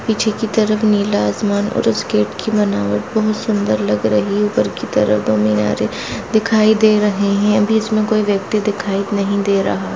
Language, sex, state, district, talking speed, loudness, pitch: Hindi, female, Rajasthan, Nagaur, 195 wpm, -16 LUFS, 205 Hz